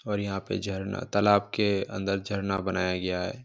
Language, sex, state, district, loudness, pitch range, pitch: Hindi, male, Jharkhand, Jamtara, -28 LUFS, 95-105 Hz, 100 Hz